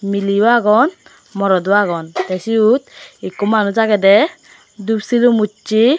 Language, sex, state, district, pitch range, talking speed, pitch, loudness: Chakma, female, Tripura, West Tripura, 200-225 Hz, 130 wpm, 210 Hz, -15 LUFS